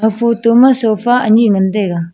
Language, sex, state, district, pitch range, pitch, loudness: Wancho, female, Arunachal Pradesh, Longding, 210-235 Hz, 220 Hz, -11 LUFS